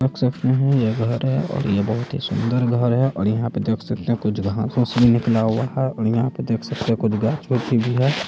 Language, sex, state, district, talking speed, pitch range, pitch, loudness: Hindi, male, Bihar, Saharsa, 255 wpm, 110-130 Hz, 120 Hz, -20 LUFS